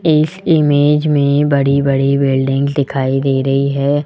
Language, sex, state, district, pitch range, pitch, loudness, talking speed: Hindi, male, Rajasthan, Jaipur, 135-145 Hz, 140 Hz, -14 LUFS, 135 wpm